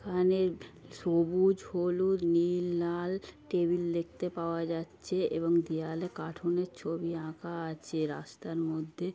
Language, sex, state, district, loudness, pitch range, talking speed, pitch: Bengali, female, West Bengal, Kolkata, -32 LUFS, 165-180 Hz, 120 wpm, 170 Hz